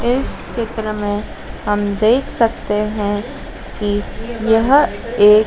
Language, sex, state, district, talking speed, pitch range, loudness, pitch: Hindi, female, Madhya Pradesh, Dhar, 110 wpm, 205-230 Hz, -18 LUFS, 215 Hz